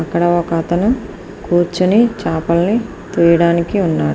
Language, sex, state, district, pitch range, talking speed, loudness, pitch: Telugu, female, Andhra Pradesh, Srikakulam, 170-200 Hz, 100 wpm, -15 LUFS, 175 Hz